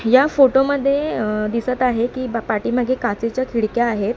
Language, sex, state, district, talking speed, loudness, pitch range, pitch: Marathi, female, Maharashtra, Mumbai Suburban, 160 wpm, -19 LUFS, 230-260 Hz, 245 Hz